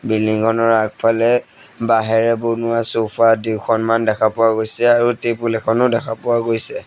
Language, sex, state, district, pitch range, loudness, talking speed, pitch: Assamese, male, Assam, Sonitpur, 110-115 Hz, -16 LUFS, 140 wpm, 115 Hz